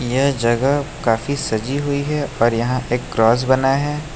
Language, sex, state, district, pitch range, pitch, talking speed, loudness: Hindi, male, Uttar Pradesh, Lucknow, 120-140 Hz, 130 Hz, 175 wpm, -18 LUFS